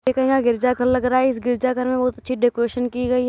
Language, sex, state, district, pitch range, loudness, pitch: Hindi, male, Uttar Pradesh, Jalaun, 245-255 Hz, -20 LUFS, 250 Hz